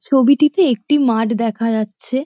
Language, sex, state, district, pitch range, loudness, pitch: Bengali, female, West Bengal, Dakshin Dinajpur, 225-285 Hz, -16 LUFS, 255 Hz